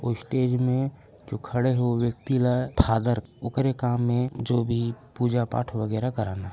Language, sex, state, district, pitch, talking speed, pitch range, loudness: Chhattisgarhi, male, Chhattisgarh, Raigarh, 120 Hz, 185 wpm, 115-125 Hz, -26 LUFS